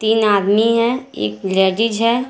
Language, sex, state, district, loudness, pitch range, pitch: Hindi, female, Jharkhand, Garhwa, -16 LUFS, 195-230 Hz, 220 Hz